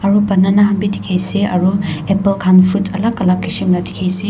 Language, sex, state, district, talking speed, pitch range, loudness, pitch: Nagamese, female, Nagaland, Dimapur, 225 wpm, 185-200 Hz, -14 LUFS, 195 Hz